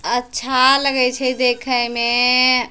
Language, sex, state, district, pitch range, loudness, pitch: Angika, female, Bihar, Begusarai, 245-255 Hz, -16 LUFS, 250 Hz